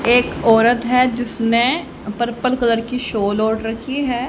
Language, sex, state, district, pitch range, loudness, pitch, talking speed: Hindi, female, Haryana, Charkhi Dadri, 225-250 Hz, -17 LUFS, 235 Hz, 155 wpm